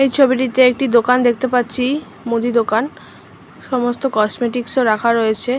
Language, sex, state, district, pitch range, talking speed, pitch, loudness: Bengali, female, West Bengal, Malda, 235-260 Hz, 150 wpm, 245 Hz, -16 LUFS